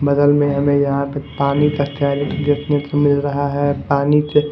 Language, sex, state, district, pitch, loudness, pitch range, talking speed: Hindi, male, Chandigarh, Chandigarh, 145 Hz, -17 LUFS, 140-145 Hz, 200 wpm